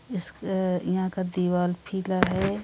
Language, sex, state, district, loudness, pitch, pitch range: Hindi, female, Bihar, Darbhanga, -26 LUFS, 185 Hz, 180-195 Hz